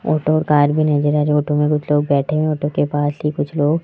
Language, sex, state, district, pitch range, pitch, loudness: Hindi, male, Rajasthan, Jaipur, 145-155 Hz, 150 Hz, -17 LUFS